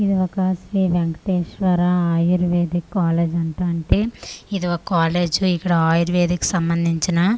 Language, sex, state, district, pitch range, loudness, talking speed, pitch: Telugu, female, Andhra Pradesh, Manyam, 170-185 Hz, -20 LUFS, 120 wpm, 175 Hz